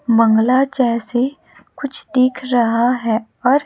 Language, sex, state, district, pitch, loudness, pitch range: Hindi, female, Chhattisgarh, Raipur, 250 Hz, -16 LUFS, 235-260 Hz